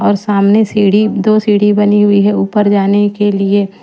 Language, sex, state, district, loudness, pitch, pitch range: Hindi, female, Chhattisgarh, Raipur, -11 LUFS, 205 Hz, 200-210 Hz